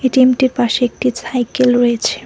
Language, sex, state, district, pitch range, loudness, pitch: Bengali, female, West Bengal, Cooch Behar, 240-255 Hz, -15 LUFS, 250 Hz